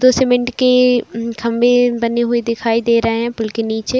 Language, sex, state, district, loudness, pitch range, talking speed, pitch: Hindi, female, Bihar, Saran, -15 LUFS, 230-245 Hz, 195 wpm, 235 Hz